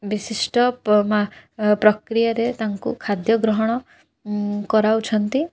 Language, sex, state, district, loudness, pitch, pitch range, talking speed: Odia, female, Odisha, Khordha, -20 LUFS, 220 Hz, 210-230 Hz, 100 wpm